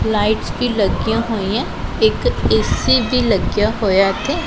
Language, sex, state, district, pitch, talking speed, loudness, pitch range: Punjabi, female, Punjab, Pathankot, 220 Hz, 135 wpm, -17 LUFS, 205-240 Hz